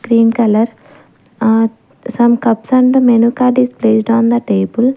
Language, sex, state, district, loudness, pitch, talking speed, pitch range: English, female, Maharashtra, Gondia, -12 LUFS, 235 Hz, 155 wpm, 225-245 Hz